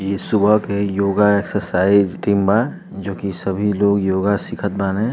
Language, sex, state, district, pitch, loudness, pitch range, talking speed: Bhojpuri, male, Uttar Pradesh, Deoria, 100 Hz, -18 LUFS, 95-100 Hz, 150 wpm